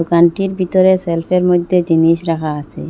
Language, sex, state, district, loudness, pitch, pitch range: Bengali, female, Assam, Hailakandi, -14 LUFS, 170 Hz, 165-185 Hz